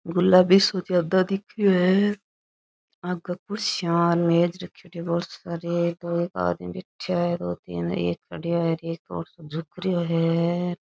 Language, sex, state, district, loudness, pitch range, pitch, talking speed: Rajasthani, female, Rajasthan, Churu, -24 LUFS, 165-180 Hz, 170 Hz, 135 wpm